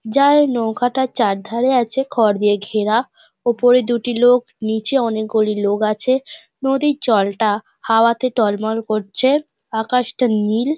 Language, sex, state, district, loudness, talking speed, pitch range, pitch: Bengali, female, West Bengal, Dakshin Dinajpur, -17 LUFS, 125 wpm, 215-255 Hz, 230 Hz